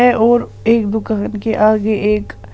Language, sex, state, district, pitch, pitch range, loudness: Hindi, female, Punjab, Pathankot, 215 Hz, 210-230 Hz, -15 LUFS